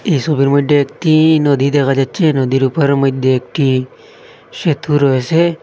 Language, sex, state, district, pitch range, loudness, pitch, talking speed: Bengali, male, Assam, Hailakandi, 135-160 Hz, -13 LUFS, 145 Hz, 150 wpm